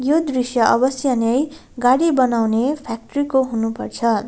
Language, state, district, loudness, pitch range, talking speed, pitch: Nepali, West Bengal, Darjeeling, -19 LUFS, 230-275 Hz, 125 wpm, 255 Hz